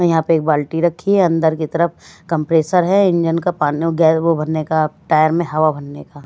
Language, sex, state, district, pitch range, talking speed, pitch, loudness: Hindi, male, Bihar, West Champaran, 155-170 Hz, 230 wpm, 160 Hz, -16 LUFS